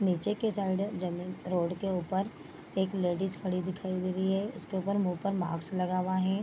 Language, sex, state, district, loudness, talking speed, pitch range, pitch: Hindi, female, Bihar, Vaishali, -32 LUFS, 225 wpm, 180-195 Hz, 185 Hz